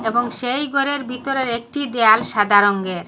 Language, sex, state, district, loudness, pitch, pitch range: Bengali, female, Assam, Hailakandi, -18 LUFS, 240 Hz, 215-270 Hz